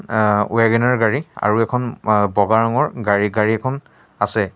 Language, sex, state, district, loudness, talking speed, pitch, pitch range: Assamese, male, Assam, Sonitpur, -18 LUFS, 155 wpm, 110 Hz, 105-120 Hz